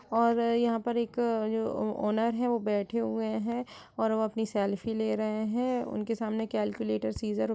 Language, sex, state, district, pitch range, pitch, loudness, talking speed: Hindi, female, Uttar Pradesh, Etah, 210-235 Hz, 220 Hz, -30 LUFS, 185 wpm